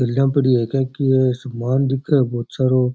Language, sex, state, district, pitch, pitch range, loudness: Rajasthani, male, Rajasthan, Churu, 130 Hz, 125-135 Hz, -19 LUFS